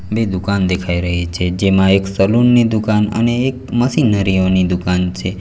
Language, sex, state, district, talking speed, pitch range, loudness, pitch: Gujarati, male, Gujarat, Valsad, 175 wpm, 90-110 Hz, -15 LUFS, 95 Hz